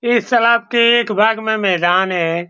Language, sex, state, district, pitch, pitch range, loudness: Hindi, male, Bihar, Saran, 220 Hz, 185-235 Hz, -14 LUFS